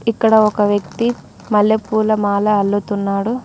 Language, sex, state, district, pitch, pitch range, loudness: Telugu, female, Telangana, Mahabubabad, 210 Hz, 205-220 Hz, -16 LUFS